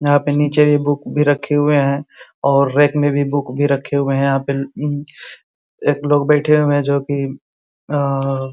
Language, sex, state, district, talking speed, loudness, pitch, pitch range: Hindi, male, Uttar Pradesh, Ghazipur, 205 wpm, -17 LUFS, 145 Hz, 140-145 Hz